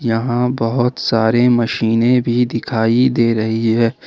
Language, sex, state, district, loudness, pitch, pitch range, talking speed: Hindi, male, Jharkhand, Ranchi, -15 LUFS, 115 Hz, 115-125 Hz, 135 wpm